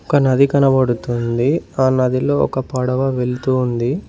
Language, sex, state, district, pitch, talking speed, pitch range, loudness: Telugu, male, Telangana, Mahabubabad, 130 Hz, 115 wpm, 125-135 Hz, -17 LUFS